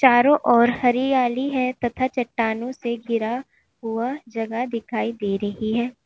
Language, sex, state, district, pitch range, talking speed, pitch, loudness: Hindi, female, Uttar Pradesh, Lalitpur, 230-255 Hz, 140 wpm, 240 Hz, -22 LUFS